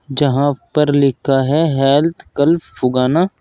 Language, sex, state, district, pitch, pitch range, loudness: Hindi, male, Uttar Pradesh, Saharanpur, 140 Hz, 135-150 Hz, -15 LUFS